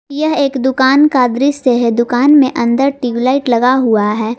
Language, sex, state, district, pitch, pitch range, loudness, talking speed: Hindi, female, Jharkhand, Garhwa, 255 Hz, 240-280 Hz, -12 LUFS, 175 wpm